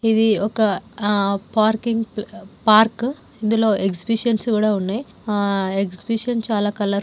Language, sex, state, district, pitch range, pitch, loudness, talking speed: Telugu, female, Telangana, Karimnagar, 200-225 Hz, 215 Hz, -20 LUFS, 120 wpm